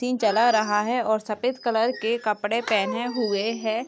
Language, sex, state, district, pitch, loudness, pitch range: Hindi, female, Chhattisgarh, Balrampur, 225 Hz, -24 LUFS, 215-240 Hz